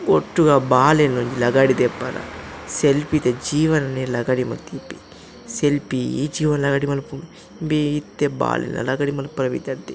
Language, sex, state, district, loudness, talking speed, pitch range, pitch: Tulu, male, Karnataka, Dakshina Kannada, -20 LUFS, 140 wpm, 130-150 Hz, 140 Hz